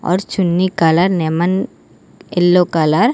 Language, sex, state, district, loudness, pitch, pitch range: Telugu, female, Telangana, Hyderabad, -15 LUFS, 175 Hz, 165-185 Hz